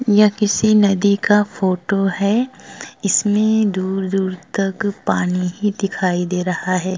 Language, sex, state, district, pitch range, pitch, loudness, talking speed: Hindi, male, Uttar Pradesh, Jyotiba Phule Nagar, 185-205 Hz, 195 Hz, -18 LUFS, 130 wpm